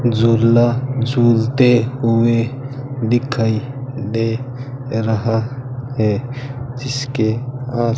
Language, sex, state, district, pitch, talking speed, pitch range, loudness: Hindi, male, Rajasthan, Bikaner, 120 Hz, 70 wpm, 115-130 Hz, -18 LUFS